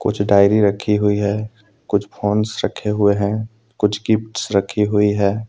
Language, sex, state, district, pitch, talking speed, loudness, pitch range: Hindi, male, Jharkhand, Deoghar, 105 Hz, 165 wpm, -18 LUFS, 100-110 Hz